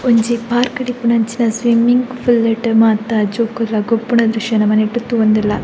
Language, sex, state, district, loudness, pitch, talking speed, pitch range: Tulu, female, Karnataka, Dakshina Kannada, -15 LUFS, 230 Hz, 150 wpm, 220-240 Hz